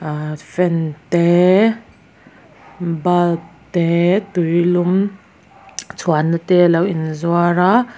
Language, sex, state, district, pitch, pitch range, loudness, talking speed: Mizo, female, Mizoram, Aizawl, 175 Hz, 165-180 Hz, -16 LUFS, 105 wpm